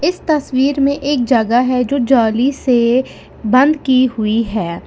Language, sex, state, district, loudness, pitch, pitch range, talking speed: Hindi, female, Uttar Pradesh, Lalitpur, -14 LUFS, 255 Hz, 235-275 Hz, 160 wpm